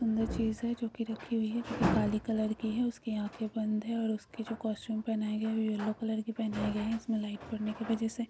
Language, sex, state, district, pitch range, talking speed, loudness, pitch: Hindi, female, Chhattisgarh, Jashpur, 215-225 Hz, 260 wpm, -34 LUFS, 220 Hz